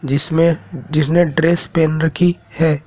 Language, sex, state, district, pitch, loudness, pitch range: Hindi, male, Madhya Pradesh, Dhar, 160 Hz, -16 LUFS, 155-170 Hz